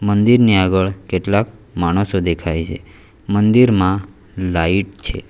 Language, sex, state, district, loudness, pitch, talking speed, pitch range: Gujarati, male, Gujarat, Valsad, -16 LUFS, 95 Hz, 100 wpm, 90-105 Hz